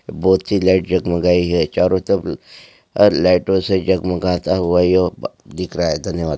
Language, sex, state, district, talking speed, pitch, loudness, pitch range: Hindi, male, Maharashtra, Aurangabad, 160 wpm, 90 Hz, -16 LUFS, 90-95 Hz